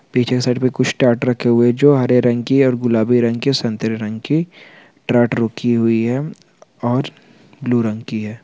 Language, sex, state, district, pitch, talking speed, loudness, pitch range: Hindi, male, Chhattisgarh, Bastar, 120 Hz, 190 wpm, -17 LUFS, 115-130 Hz